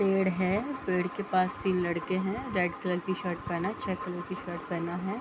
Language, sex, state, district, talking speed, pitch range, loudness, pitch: Hindi, female, Bihar, Gopalganj, 230 wpm, 175-195 Hz, -31 LUFS, 185 Hz